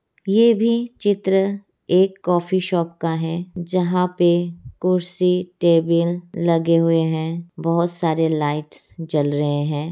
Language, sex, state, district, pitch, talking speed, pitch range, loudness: Hindi, female, Bihar, Muzaffarpur, 175 Hz, 125 wpm, 165-185 Hz, -20 LUFS